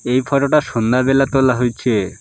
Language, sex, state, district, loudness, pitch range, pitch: Bengali, male, West Bengal, Alipurduar, -16 LUFS, 120-135 Hz, 130 Hz